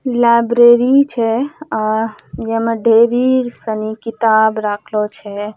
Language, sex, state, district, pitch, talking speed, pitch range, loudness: Angika, female, Bihar, Bhagalpur, 225 Hz, 95 wpm, 220-240 Hz, -14 LUFS